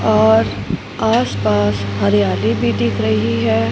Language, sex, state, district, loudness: Hindi, female, Punjab, Fazilka, -16 LUFS